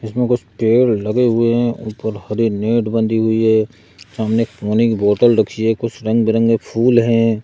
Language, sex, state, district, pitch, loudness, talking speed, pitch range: Hindi, male, Madhya Pradesh, Bhopal, 115 Hz, -16 LUFS, 175 wpm, 110-115 Hz